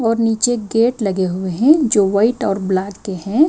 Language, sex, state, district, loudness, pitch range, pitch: Hindi, female, Himachal Pradesh, Shimla, -16 LUFS, 195-235 Hz, 215 Hz